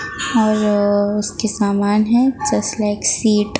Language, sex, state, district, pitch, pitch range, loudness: Hindi, female, Gujarat, Gandhinagar, 210 Hz, 205-225 Hz, -17 LUFS